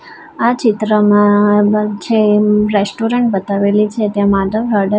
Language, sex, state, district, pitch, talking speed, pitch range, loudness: Gujarati, female, Gujarat, Gandhinagar, 210 Hz, 95 wpm, 205-225 Hz, -13 LUFS